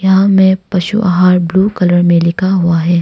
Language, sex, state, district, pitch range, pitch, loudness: Hindi, female, Arunachal Pradesh, Longding, 175-190 Hz, 185 Hz, -11 LUFS